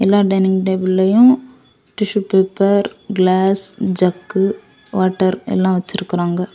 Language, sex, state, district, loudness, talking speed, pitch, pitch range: Tamil, female, Tamil Nadu, Kanyakumari, -16 LUFS, 90 wpm, 190 Hz, 185-200 Hz